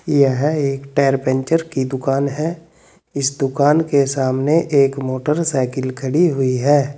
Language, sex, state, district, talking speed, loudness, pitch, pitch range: Hindi, male, Uttar Pradesh, Saharanpur, 140 wpm, -18 LUFS, 140 Hz, 135-150 Hz